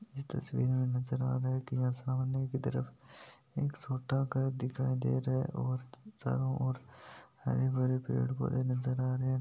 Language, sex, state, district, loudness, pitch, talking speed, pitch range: Hindi, male, Rajasthan, Nagaur, -34 LUFS, 130 Hz, 190 wpm, 125-130 Hz